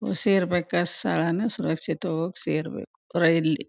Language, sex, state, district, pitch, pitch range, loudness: Kannada, female, Karnataka, Chamarajanagar, 170 Hz, 165-180 Hz, -25 LUFS